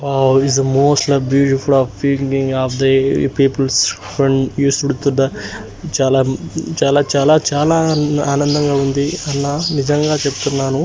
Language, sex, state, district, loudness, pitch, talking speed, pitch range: Telugu, male, Telangana, Nalgonda, -15 LUFS, 140 Hz, 65 wpm, 135-145 Hz